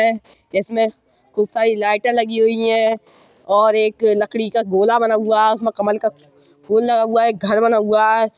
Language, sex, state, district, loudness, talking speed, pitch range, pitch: Hindi, male, Uttar Pradesh, Budaun, -16 LUFS, 195 wpm, 210-225 Hz, 220 Hz